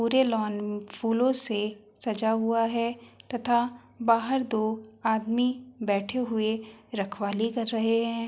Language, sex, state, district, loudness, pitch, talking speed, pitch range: Hindi, female, Uttar Pradesh, Hamirpur, -28 LUFS, 225 Hz, 125 wpm, 220-235 Hz